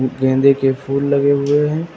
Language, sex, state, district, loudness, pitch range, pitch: Hindi, male, Uttar Pradesh, Lucknow, -16 LUFS, 135-140 Hz, 140 Hz